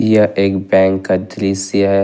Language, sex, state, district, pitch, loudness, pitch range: Hindi, male, Jharkhand, Ranchi, 100 Hz, -15 LUFS, 95-100 Hz